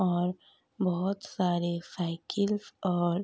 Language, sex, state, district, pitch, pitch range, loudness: Hindi, female, Bihar, Gopalganj, 180 Hz, 175-195 Hz, -31 LUFS